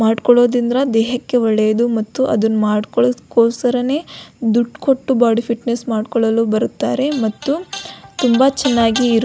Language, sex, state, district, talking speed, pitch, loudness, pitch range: Kannada, female, Karnataka, Belgaum, 110 wpm, 235 Hz, -16 LUFS, 225-250 Hz